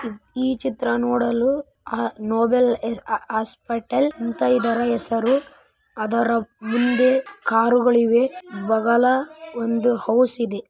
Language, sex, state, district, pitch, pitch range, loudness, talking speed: Kannada, female, Karnataka, Raichur, 240 Hz, 230-255 Hz, -21 LUFS, 95 wpm